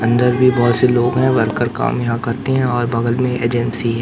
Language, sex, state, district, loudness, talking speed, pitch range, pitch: Hindi, male, Madhya Pradesh, Katni, -16 LUFS, 240 wpm, 115-125 Hz, 120 Hz